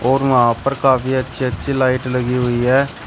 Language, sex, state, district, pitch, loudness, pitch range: Hindi, male, Uttar Pradesh, Shamli, 130 Hz, -17 LUFS, 125-135 Hz